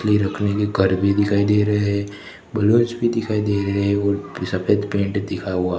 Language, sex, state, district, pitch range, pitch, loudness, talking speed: Hindi, male, Gujarat, Gandhinagar, 100-105 Hz, 100 Hz, -20 LUFS, 205 wpm